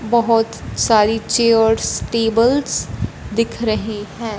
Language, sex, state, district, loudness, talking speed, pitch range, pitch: Hindi, female, Punjab, Fazilka, -17 LUFS, 95 wpm, 220-230 Hz, 225 Hz